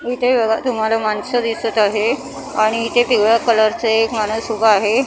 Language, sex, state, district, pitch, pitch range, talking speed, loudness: Marathi, female, Maharashtra, Mumbai Suburban, 225 Hz, 215-240 Hz, 165 wpm, -16 LUFS